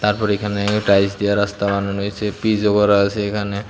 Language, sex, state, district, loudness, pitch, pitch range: Bengali, male, Tripura, West Tripura, -18 LUFS, 100 Hz, 100-105 Hz